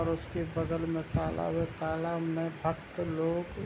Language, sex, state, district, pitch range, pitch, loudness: Hindi, male, Bihar, Begusarai, 160-165 Hz, 165 Hz, -33 LUFS